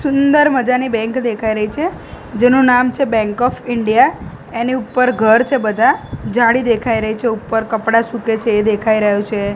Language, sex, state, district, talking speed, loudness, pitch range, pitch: Gujarati, female, Gujarat, Gandhinagar, 180 wpm, -15 LUFS, 220-250 Hz, 230 Hz